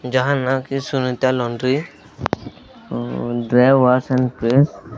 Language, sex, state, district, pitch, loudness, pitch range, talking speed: Odia, male, Odisha, Sambalpur, 130 Hz, -19 LUFS, 120-135 Hz, 120 wpm